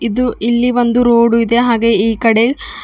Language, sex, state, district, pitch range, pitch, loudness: Kannada, female, Karnataka, Bidar, 230-245 Hz, 235 Hz, -12 LUFS